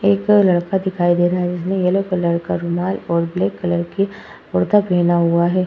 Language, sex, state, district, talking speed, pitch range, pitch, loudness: Hindi, female, Uttar Pradesh, Hamirpur, 200 wpm, 175-190 Hz, 180 Hz, -18 LUFS